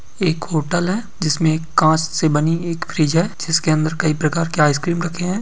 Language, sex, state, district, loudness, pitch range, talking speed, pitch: Hindi, male, Uttarakhand, Uttarkashi, -18 LUFS, 155-175 Hz, 210 wpm, 165 Hz